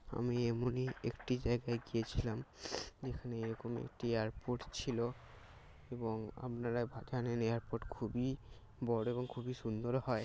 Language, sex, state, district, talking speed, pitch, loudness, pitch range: Bengali, male, West Bengal, North 24 Parganas, 115 wpm, 120 Hz, -40 LUFS, 115-125 Hz